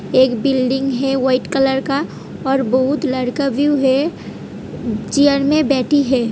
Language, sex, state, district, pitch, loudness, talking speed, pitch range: Hindi, female, Uttar Pradesh, Hamirpur, 270 Hz, -17 LUFS, 150 wpm, 255-280 Hz